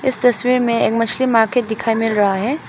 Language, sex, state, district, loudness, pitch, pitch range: Hindi, female, Arunachal Pradesh, Papum Pare, -16 LUFS, 230 Hz, 225-250 Hz